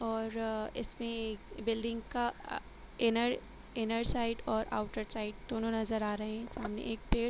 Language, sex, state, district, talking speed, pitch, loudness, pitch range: Hindi, female, Uttar Pradesh, Hamirpur, 165 wpm, 225 Hz, -36 LUFS, 220-230 Hz